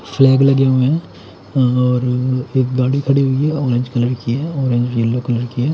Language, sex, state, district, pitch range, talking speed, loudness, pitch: Hindi, male, Haryana, Charkhi Dadri, 120-135 Hz, 105 wpm, -16 LUFS, 125 Hz